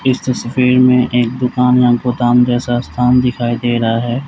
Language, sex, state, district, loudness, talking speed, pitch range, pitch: Hindi, male, Uttar Pradesh, Lalitpur, -13 LUFS, 180 wpm, 120-125 Hz, 125 Hz